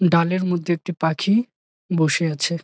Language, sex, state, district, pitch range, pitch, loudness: Bengali, male, West Bengal, Jalpaiguri, 165-185 Hz, 170 Hz, -21 LUFS